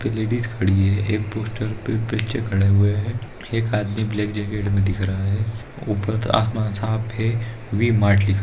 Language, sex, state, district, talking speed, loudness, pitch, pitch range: Hindi, male, Bihar, Saharsa, 190 wpm, -22 LUFS, 110 Hz, 100-110 Hz